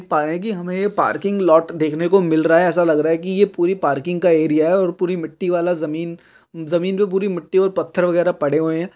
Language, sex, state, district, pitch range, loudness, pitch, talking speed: Hindi, male, Uttarakhand, Tehri Garhwal, 160-185 Hz, -18 LUFS, 175 Hz, 235 wpm